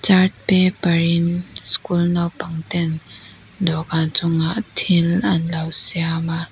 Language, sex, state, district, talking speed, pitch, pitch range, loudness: Mizo, female, Mizoram, Aizawl, 120 wpm, 170 Hz, 160-175 Hz, -18 LUFS